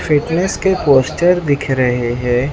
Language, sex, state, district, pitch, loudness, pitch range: Hindi, male, Maharashtra, Mumbai Suburban, 145 Hz, -15 LUFS, 125-175 Hz